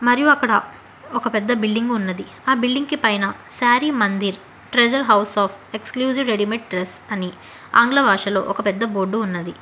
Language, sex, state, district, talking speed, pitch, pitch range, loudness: Telugu, female, Telangana, Hyderabad, 155 wpm, 220 Hz, 200-245 Hz, -19 LUFS